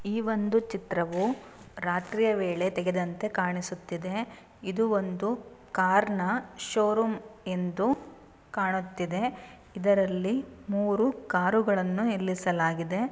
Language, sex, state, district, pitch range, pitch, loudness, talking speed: Kannada, female, Karnataka, Shimoga, 185-225 Hz, 200 Hz, -29 LUFS, 85 wpm